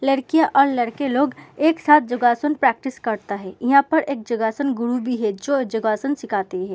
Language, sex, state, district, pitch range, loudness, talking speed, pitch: Hindi, female, Uttar Pradesh, Muzaffarnagar, 225-280 Hz, -20 LUFS, 185 wpm, 255 Hz